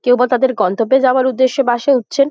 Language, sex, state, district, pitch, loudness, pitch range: Bengali, female, West Bengal, Jhargram, 255 Hz, -14 LUFS, 245-265 Hz